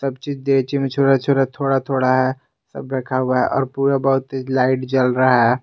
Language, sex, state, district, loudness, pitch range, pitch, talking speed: Hindi, male, Jharkhand, Garhwa, -18 LUFS, 130-135 Hz, 135 Hz, 180 wpm